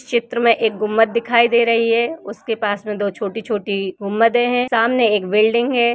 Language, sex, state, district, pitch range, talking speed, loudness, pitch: Hindi, female, Uttar Pradesh, Varanasi, 210-235 Hz, 200 wpm, -17 LUFS, 225 Hz